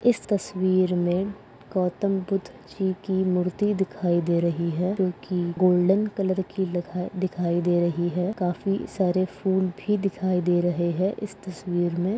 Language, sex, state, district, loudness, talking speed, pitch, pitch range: Hindi, female, Maharashtra, Pune, -25 LUFS, 160 wpm, 185 Hz, 175-195 Hz